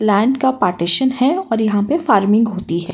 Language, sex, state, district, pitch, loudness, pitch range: Hindi, female, Uttar Pradesh, Jyotiba Phule Nagar, 220 Hz, -16 LUFS, 200-260 Hz